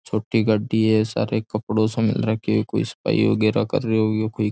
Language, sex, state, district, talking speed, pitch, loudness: Rajasthani, male, Rajasthan, Churu, 200 wpm, 110 Hz, -21 LUFS